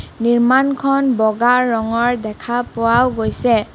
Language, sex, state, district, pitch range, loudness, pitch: Assamese, female, Assam, Kamrup Metropolitan, 230-250 Hz, -16 LUFS, 240 Hz